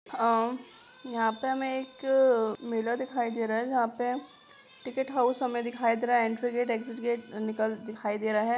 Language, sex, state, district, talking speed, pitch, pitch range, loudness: Hindi, female, Bihar, Purnia, 195 wpm, 240 Hz, 225-250 Hz, -29 LUFS